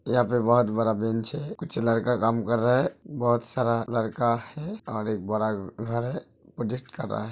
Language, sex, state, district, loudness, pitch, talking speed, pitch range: Hindi, male, Uttar Pradesh, Hamirpur, -27 LUFS, 120 Hz, 205 wpm, 115-125 Hz